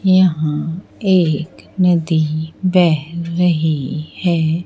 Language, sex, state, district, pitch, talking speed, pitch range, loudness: Hindi, female, Bihar, Katihar, 165 Hz, 75 wpm, 155-180 Hz, -17 LUFS